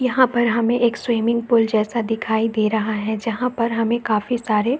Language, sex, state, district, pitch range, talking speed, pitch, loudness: Hindi, female, Bihar, Saharsa, 220-240 Hz, 210 wpm, 230 Hz, -20 LUFS